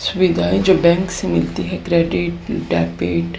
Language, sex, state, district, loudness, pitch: Hindi, female, Haryana, Charkhi Dadri, -17 LUFS, 170 Hz